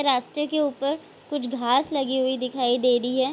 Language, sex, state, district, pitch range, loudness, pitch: Hindi, female, Bihar, Vaishali, 250-285 Hz, -24 LUFS, 260 Hz